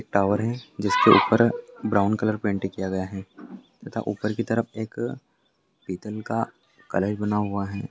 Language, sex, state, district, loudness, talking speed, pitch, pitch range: Hindi, male, Bihar, Bhagalpur, -25 LUFS, 165 wpm, 105 Hz, 100-115 Hz